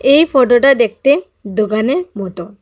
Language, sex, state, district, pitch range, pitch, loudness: Bengali, female, Assam, Hailakandi, 205-275 Hz, 235 Hz, -13 LUFS